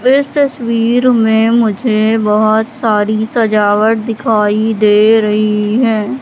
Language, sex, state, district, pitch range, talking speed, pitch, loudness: Hindi, female, Madhya Pradesh, Katni, 215-235 Hz, 105 wpm, 220 Hz, -12 LUFS